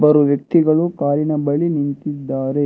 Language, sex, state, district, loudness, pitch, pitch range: Kannada, male, Karnataka, Bangalore, -18 LUFS, 145 Hz, 140-155 Hz